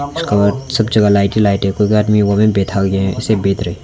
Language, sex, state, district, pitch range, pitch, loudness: Hindi, male, Arunachal Pradesh, Longding, 100-110 Hz, 105 Hz, -14 LUFS